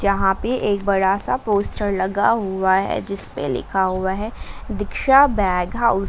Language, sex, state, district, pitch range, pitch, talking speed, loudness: Hindi, female, Jharkhand, Garhwa, 190-210 Hz, 200 Hz, 165 wpm, -20 LUFS